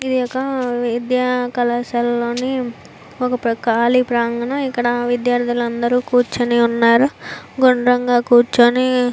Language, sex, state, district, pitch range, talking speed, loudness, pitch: Telugu, female, Andhra Pradesh, Visakhapatnam, 240-250 Hz, 105 wpm, -17 LUFS, 245 Hz